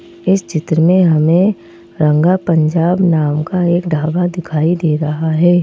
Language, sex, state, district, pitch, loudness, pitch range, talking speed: Hindi, female, Madhya Pradesh, Bhopal, 165 Hz, -14 LUFS, 155-175 Hz, 150 wpm